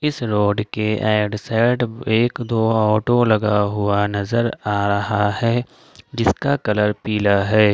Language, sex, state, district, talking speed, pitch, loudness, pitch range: Hindi, male, Jharkhand, Ranchi, 145 wpm, 110 Hz, -19 LUFS, 105-120 Hz